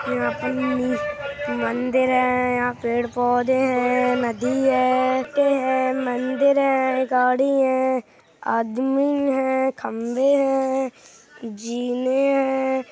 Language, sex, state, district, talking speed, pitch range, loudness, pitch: Hindi, female, Uttar Pradesh, Budaun, 95 wpm, 250-270 Hz, -21 LUFS, 260 Hz